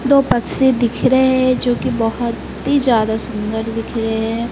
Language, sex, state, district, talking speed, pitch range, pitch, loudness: Hindi, female, Odisha, Malkangiri, 185 wpm, 225-255 Hz, 235 Hz, -16 LUFS